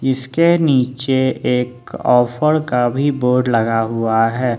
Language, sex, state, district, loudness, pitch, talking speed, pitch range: Hindi, male, Jharkhand, Ranchi, -16 LUFS, 125 Hz, 130 wpm, 120-135 Hz